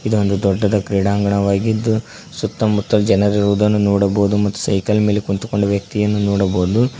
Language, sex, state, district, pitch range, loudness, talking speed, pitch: Kannada, male, Karnataka, Koppal, 100-105 Hz, -17 LUFS, 110 wpm, 105 Hz